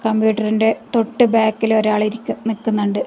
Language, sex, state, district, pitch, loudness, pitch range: Malayalam, female, Kerala, Kasaragod, 220 Hz, -17 LUFS, 215-225 Hz